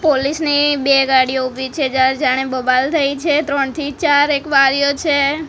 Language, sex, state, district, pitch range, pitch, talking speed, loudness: Gujarati, female, Gujarat, Gandhinagar, 265-295 Hz, 280 Hz, 165 wpm, -15 LUFS